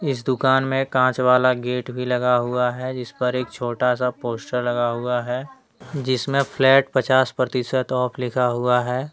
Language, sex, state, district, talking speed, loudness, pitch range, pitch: Hindi, male, Jharkhand, Deoghar, 175 wpm, -21 LUFS, 125-130 Hz, 125 Hz